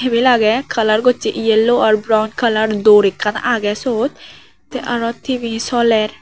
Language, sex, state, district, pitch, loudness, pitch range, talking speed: Chakma, female, Tripura, West Tripura, 225 Hz, -15 LUFS, 215-240 Hz, 155 wpm